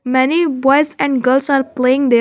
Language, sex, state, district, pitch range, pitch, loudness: English, female, Jharkhand, Garhwa, 260-285 Hz, 270 Hz, -14 LUFS